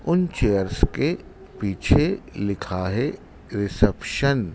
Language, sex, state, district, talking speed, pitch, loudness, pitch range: Hindi, male, Madhya Pradesh, Dhar, 105 wpm, 100 Hz, -23 LUFS, 95-115 Hz